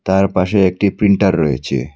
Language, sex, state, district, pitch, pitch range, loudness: Bengali, male, Assam, Hailakandi, 95 Hz, 75-100 Hz, -15 LUFS